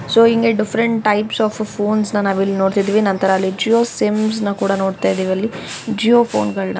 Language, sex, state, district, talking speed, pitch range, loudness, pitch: Kannada, female, Karnataka, Dakshina Kannada, 175 wpm, 195-220 Hz, -17 LUFS, 210 Hz